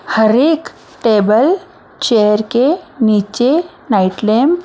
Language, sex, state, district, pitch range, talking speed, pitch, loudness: Hindi, female, Maharashtra, Mumbai Suburban, 215-315 Hz, 115 wpm, 235 Hz, -13 LUFS